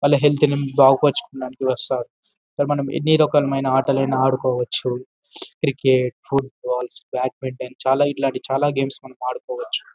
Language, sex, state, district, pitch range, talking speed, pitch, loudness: Telugu, male, Telangana, Karimnagar, 130-145 Hz, 120 wpm, 135 Hz, -20 LUFS